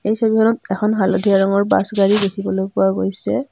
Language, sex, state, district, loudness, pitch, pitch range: Assamese, female, Assam, Kamrup Metropolitan, -17 LUFS, 200 Hz, 190-215 Hz